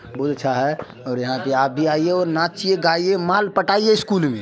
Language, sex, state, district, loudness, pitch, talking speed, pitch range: Maithili, male, Bihar, Supaul, -19 LUFS, 165 Hz, 230 wpm, 135-195 Hz